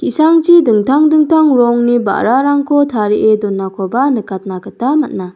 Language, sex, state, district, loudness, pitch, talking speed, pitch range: Garo, female, Meghalaya, South Garo Hills, -12 LUFS, 240 Hz, 110 wpm, 210-290 Hz